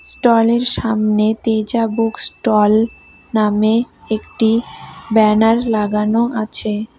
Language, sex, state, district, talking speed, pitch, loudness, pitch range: Bengali, female, West Bengal, Cooch Behar, 105 wpm, 220 Hz, -16 LUFS, 215-230 Hz